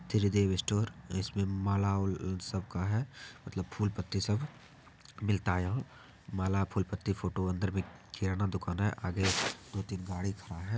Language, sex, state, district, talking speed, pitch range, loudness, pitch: Hindi, male, Bihar, Supaul, 165 wpm, 95-105 Hz, -34 LUFS, 100 Hz